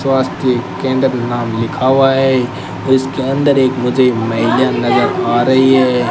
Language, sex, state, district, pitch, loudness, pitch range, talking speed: Hindi, male, Rajasthan, Bikaner, 130 Hz, -13 LUFS, 120-130 Hz, 145 wpm